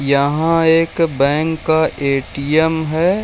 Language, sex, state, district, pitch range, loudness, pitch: Hindi, male, Bihar, Jamui, 140-165 Hz, -16 LUFS, 160 Hz